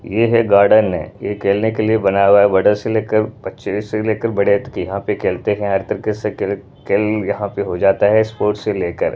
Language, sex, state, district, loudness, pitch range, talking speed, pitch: Hindi, male, Punjab, Pathankot, -16 LUFS, 100-110 Hz, 235 wpm, 105 Hz